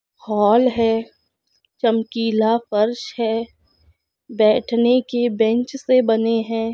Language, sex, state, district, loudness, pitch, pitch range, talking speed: Hindi, female, Goa, North and South Goa, -19 LUFS, 225 Hz, 220-240 Hz, 100 wpm